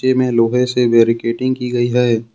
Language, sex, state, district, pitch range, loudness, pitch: Hindi, male, Jharkhand, Deoghar, 115-125 Hz, -15 LUFS, 120 Hz